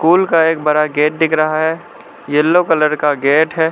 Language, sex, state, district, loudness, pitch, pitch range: Hindi, male, Arunachal Pradesh, Lower Dibang Valley, -14 LUFS, 155 Hz, 150-165 Hz